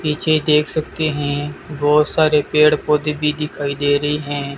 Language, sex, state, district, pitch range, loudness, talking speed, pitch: Hindi, male, Rajasthan, Bikaner, 145-150 Hz, -17 LUFS, 170 wpm, 150 Hz